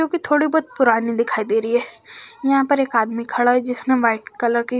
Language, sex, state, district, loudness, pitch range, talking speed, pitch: Hindi, female, Haryana, Charkhi Dadri, -19 LUFS, 230-275 Hz, 225 wpm, 245 Hz